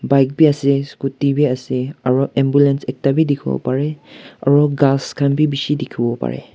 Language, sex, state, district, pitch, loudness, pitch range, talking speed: Nagamese, male, Nagaland, Kohima, 140 Hz, -17 LUFS, 135-145 Hz, 190 wpm